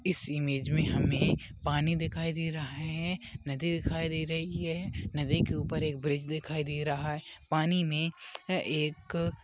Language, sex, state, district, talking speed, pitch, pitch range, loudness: Hindi, male, Goa, North and South Goa, 165 wpm, 155 Hz, 145-165 Hz, -32 LUFS